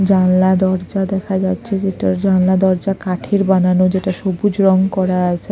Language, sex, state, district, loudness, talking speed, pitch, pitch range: Bengali, female, Odisha, Khordha, -16 LUFS, 150 wpm, 190 Hz, 185-195 Hz